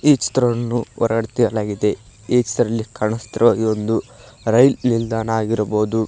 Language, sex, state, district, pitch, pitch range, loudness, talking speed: Kannada, male, Karnataka, Koppal, 115 Hz, 110-120 Hz, -19 LUFS, 110 wpm